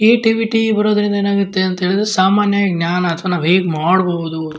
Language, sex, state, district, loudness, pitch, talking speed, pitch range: Kannada, male, Karnataka, Shimoga, -15 LUFS, 190 Hz, 120 wpm, 175-210 Hz